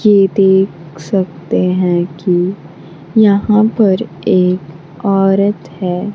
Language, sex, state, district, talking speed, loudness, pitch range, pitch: Hindi, female, Bihar, Kaimur, 100 wpm, -13 LUFS, 175-200 Hz, 185 Hz